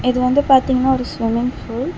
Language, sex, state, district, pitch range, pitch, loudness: Tamil, female, Tamil Nadu, Chennai, 250-265 Hz, 255 Hz, -17 LUFS